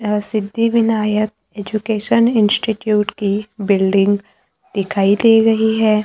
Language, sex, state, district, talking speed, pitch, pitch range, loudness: Hindi, male, Maharashtra, Gondia, 100 wpm, 215 Hz, 205-225 Hz, -16 LUFS